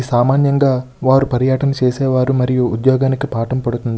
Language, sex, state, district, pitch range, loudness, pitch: Telugu, male, Andhra Pradesh, Srikakulam, 125-135 Hz, -15 LUFS, 130 Hz